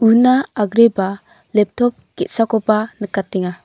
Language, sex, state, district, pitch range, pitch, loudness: Garo, female, Meghalaya, North Garo Hills, 195-230 Hz, 215 Hz, -17 LUFS